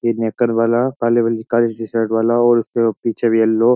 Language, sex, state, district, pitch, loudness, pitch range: Hindi, male, Uttar Pradesh, Jyotiba Phule Nagar, 115 Hz, -17 LUFS, 115-120 Hz